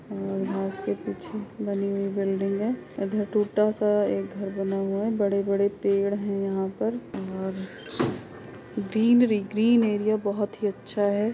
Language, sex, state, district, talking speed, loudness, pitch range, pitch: Hindi, female, Uttar Pradesh, Etah, 150 wpm, -26 LUFS, 195-210 Hz, 200 Hz